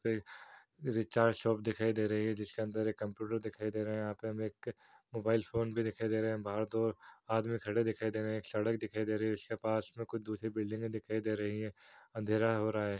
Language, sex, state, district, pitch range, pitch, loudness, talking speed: Hindi, male, Bihar, Bhagalpur, 110-115 Hz, 110 Hz, -36 LUFS, 245 wpm